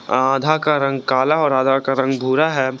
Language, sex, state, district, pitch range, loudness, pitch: Hindi, male, Jharkhand, Garhwa, 130-145 Hz, -17 LUFS, 135 Hz